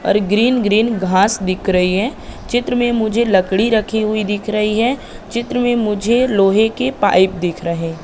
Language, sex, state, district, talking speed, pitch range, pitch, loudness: Hindi, female, Madhya Pradesh, Katni, 180 wpm, 190-235 Hz, 215 Hz, -16 LUFS